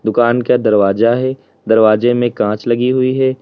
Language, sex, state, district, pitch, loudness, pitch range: Hindi, male, Uttar Pradesh, Lalitpur, 120 Hz, -13 LUFS, 110-125 Hz